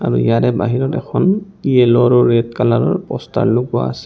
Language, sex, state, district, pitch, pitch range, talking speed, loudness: Assamese, male, Assam, Kamrup Metropolitan, 120 Hz, 115-135 Hz, 165 wpm, -15 LUFS